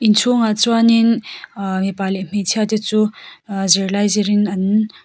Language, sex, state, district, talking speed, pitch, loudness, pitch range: Mizo, female, Mizoram, Aizawl, 165 wpm, 210 Hz, -16 LUFS, 195-220 Hz